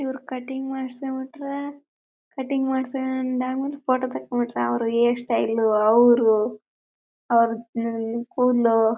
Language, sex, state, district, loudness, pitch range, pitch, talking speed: Kannada, female, Karnataka, Bellary, -23 LUFS, 230-265 Hz, 250 Hz, 100 wpm